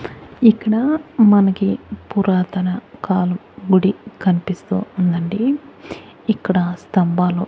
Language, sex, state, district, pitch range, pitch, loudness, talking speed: Telugu, female, Andhra Pradesh, Annamaya, 180-215 Hz, 190 Hz, -18 LUFS, 70 wpm